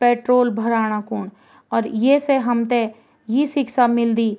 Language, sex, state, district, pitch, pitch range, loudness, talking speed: Garhwali, female, Uttarakhand, Tehri Garhwal, 240 Hz, 225-255 Hz, -19 LUFS, 150 wpm